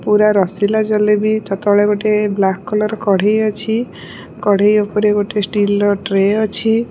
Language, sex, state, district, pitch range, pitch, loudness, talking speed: Odia, female, Odisha, Malkangiri, 205-215 Hz, 210 Hz, -15 LUFS, 150 wpm